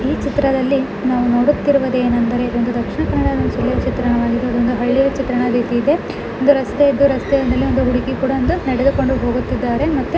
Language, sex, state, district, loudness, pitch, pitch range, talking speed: Kannada, female, Karnataka, Dakshina Kannada, -17 LUFS, 255 Hz, 240-270 Hz, 160 wpm